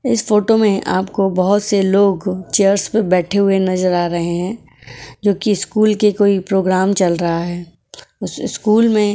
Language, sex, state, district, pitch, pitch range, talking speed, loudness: Hindi, female, Goa, North and South Goa, 195 Hz, 185-210 Hz, 185 wpm, -16 LUFS